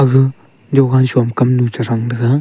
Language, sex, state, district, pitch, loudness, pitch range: Wancho, male, Arunachal Pradesh, Longding, 125 Hz, -14 LUFS, 120-135 Hz